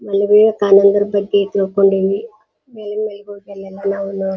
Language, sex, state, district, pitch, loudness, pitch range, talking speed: Kannada, female, Karnataka, Dharwad, 200 Hz, -15 LUFS, 195-210 Hz, 150 wpm